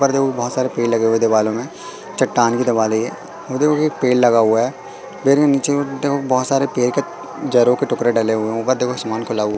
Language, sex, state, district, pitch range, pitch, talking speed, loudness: Hindi, male, Madhya Pradesh, Katni, 115-135 Hz, 125 Hz, 265 wpm, -17 LUFS